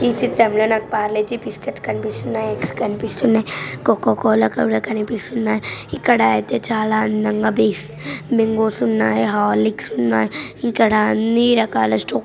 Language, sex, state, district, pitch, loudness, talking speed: Telugu, male, Telangana, Nalgonda, 215 Hz, -18 LUFS, 120 wpm